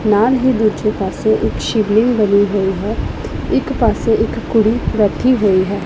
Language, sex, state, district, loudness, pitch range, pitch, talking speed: Punjabi, female, Punjab, Pathankot, -15 LUFS, 195-220 Hz, 210 Hz, 165 wpm